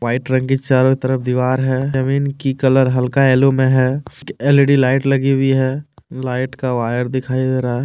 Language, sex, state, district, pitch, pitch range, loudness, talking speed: Hindi, male, Jharkhand, Deoghar, 130 Hz, 130-135 Hz, -16 LUFS, 205 wpm